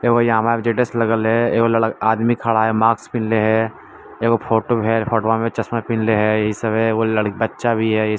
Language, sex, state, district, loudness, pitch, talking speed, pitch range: Maithili, male, Bihar, Lakhisarai, -18 LUFS, 115 Hz, 145 wpm, 110-115 Hz